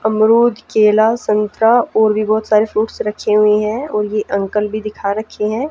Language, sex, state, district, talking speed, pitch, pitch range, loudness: Hindi, female, Haryana, Jhajjar, 190 wpm, 215 Hz, 210-220 Hz, -15 LUFS